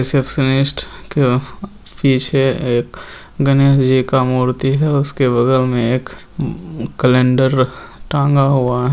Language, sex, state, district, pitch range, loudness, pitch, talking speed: Hindi, male, Bihar, Gopalganj, 125-140 Hz, -15 LUFS, 135 Hz, 115 wpm